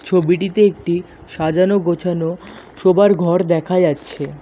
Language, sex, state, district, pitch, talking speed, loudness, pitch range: Bengali, male, West Bengal, Alipurduar, 175 Hz, 110 wpm, -16 LUFS, 170-185 Hz